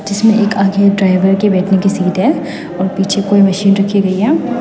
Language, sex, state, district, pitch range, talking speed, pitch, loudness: Hindi, female, Meghalaya, West Garo Hills, 190-205 Hz, 220 wpm, 200 Hz, -12 LUFS